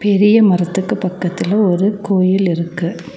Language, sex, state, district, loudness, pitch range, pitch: Tamil, female, Tamil Nadu, Nilgiris, -15 LUFS, 180-205 Hz, 190 Hz